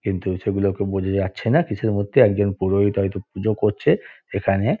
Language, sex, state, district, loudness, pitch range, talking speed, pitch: Bengali, male, West Bengal, Dakshin Dinajpur, -21 LUFS, 95-105 Hz, 175 wpm, 100 Hz